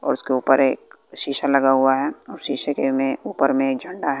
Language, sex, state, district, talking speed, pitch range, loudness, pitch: Hindi, male, Bihar, West Champaran, 215 wpm, 135-140 Hz, -20 LUFS, 135 Hz